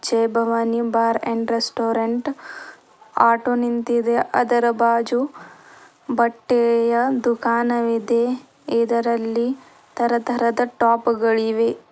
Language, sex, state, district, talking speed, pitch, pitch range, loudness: Kannada, female, Karnataka, Bidar, 80 wpm, 235 Hz, 230-240 Hz, -20 LUFS